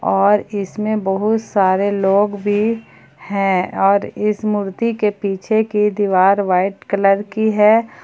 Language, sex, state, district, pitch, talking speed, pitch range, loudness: Hindi, female, Jharkhand, Palamu, 205 Hz, 135 wpm, 195-215 Hz, -17 LUFS